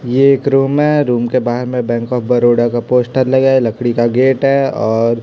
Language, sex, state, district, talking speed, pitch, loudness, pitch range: Hindi, male, Chhattisgarh, Raipur, 230 wpm, 125 Hz, -13 LUFS, 120-135 Hz